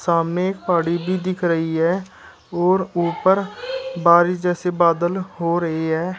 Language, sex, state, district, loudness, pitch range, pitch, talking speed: Hindi, male, Uttar Pradesh, Shamli, -20 LUFS, 170-185 Hz, 175 Hz, 145 wpm